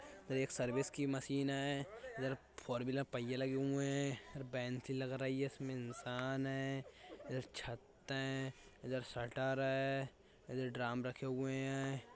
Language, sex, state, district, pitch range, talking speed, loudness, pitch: Hindi, male, Uttar Pradesh, Budaun, 130-135 Hz, 155 wpm, -42 LUFS, 135 Hz